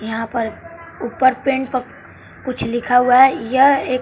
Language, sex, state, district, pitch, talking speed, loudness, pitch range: Hindi, male, Bihar, West Champaran, 255 Hz, 165 wpm, -16 LUFS, 245-270 Hz